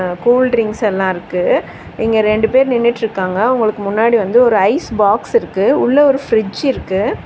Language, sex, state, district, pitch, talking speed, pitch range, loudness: Tamil, female, Tamil Nadu, Chennai, 225 Hz, 155 wpm, 200-245 Hz, -14 LUFS